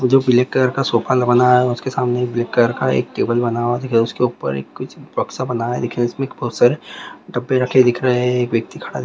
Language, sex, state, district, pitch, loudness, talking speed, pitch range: Hindi, male, Chhattisgarh, Raigarh, 125 Hz, -18 LUFS, 230 wpm, 120-130 Hz